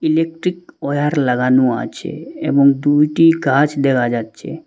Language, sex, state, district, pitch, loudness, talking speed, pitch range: Bengali, male, Assam, Hailakandi, 145 Hz, -16 LUFS, 115 wpm, 130-160 Hz